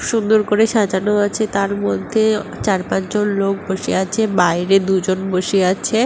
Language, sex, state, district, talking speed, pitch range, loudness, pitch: Bengali, female, West Bengal, Paschim Medinipur, 170 wpm, 190-215 Hz, -17 LUFS, 200 Hz